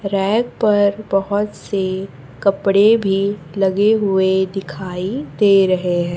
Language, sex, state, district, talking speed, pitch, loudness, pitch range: Hindi, female, Chhattisgarh, Raipur, 115 wpm, 195 Hz, -17 LUFS, 190-205 Hz